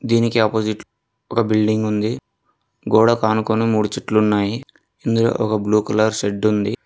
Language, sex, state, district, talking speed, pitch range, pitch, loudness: Telugu, male, Telangana, Mahabubabad, 120 wpm, 105-115 Hz, 110 Hz, -18 LUFS